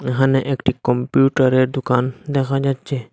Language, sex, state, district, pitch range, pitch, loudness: Bengali, male, Assam, Hailakandi, 125-135 Hz, 135 Hz, -18 LUFS